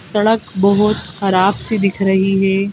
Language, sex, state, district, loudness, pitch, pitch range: Hindi, female, Madhya Pradesh, Bhopal, -15 LUFS, 195 Hz, 195-210 Hz